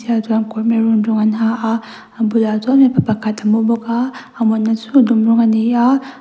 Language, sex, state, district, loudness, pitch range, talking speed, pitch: Mizo, female, Mizoram, Aizawl, -15 LUFS, 220-235 Hz, 220 wpm, 225 Hz